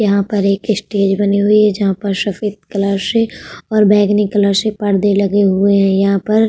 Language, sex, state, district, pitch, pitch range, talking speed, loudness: Hindi, female, Uttar Pradesh, Budaun, 200 Hz, 195-210 Hz, 215 wpm, -14 LUFS